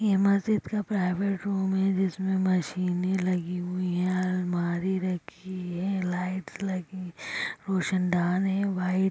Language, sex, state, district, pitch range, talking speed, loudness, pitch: Hindi, female, Bihar, Samastipur, 180-190 Hz, 140 wpm, -28 LUFS, 185 Hz